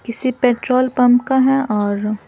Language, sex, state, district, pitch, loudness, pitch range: Hindi, female, Bihar, Patna, 250 Hz, -16 LUFS, 225-260 Hz